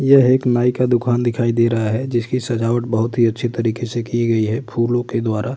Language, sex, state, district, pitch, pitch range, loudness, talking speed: Hindi, male, Uttar Pradesh, Budaun, 120 Hz, 115-125 Hz, -18 LUFS, 235 wpm